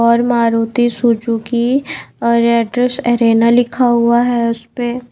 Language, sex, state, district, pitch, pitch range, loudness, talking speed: Hindi, female, Maharashtra, Mumbai Suburban, 235 Hz, 230-245 Hz, -14 LUFS, 130 wpm